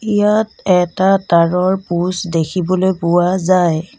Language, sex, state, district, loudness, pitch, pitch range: Assamese, female, Assam, Sonitpur, -15 LUFS, 185 Hz, 175-190 Hz